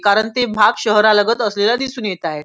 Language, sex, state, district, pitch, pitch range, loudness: Marathi, female, Maharashtra, Nagpur, 215 Hz, 205-230 Hz, -15 LUFS